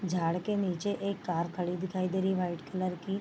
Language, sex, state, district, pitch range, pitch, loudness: Hindi, female, Bihar, Vaishali, 175-195 Hz, 185 Hz, -33 LUFS